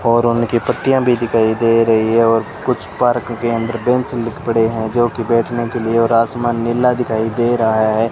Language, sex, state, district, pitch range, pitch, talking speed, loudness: Hindi, male, Rajasthan, Bikaner, 115-120 Hz, 115 Hz, 205 wpm, -16 LUFS